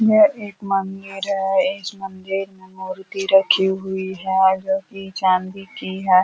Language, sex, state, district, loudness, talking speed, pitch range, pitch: Hindi, female, Uttar Pradesh, Ghazipur, -20 LUFS, 155 wpm, 190-195 Hz, 195 Hz